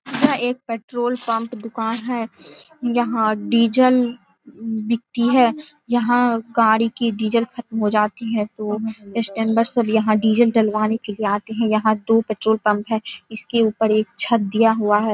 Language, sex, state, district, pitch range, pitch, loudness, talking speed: Hindi, female, Bihar, Araria, 215-240 Hz, 225 Hz, -19 LUFS, 160 wpm